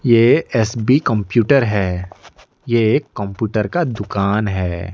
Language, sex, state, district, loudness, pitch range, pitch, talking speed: Hindi, male, Odisha, Nuapada, -17 LUFS, 100-120 Hz, 110 Hz, 120 wpm